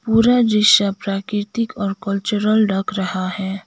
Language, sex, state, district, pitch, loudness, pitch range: Hindi, female, Sikkim, Gangtok, 205 Hz, -18 LUFS, 195-215 Hz